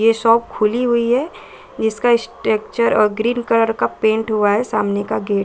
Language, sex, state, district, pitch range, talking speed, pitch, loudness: Hindi, female, Bihar, Saran, 210-235 Hz, 200 wpm, 225 Hz, -17 LUFS